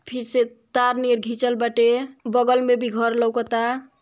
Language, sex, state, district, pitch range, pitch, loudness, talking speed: Bhojpuri, female, Uttar Pradesh, Ghazipur, 235-250 Hz, 245 Hz, -21 LUFS, 165 wpm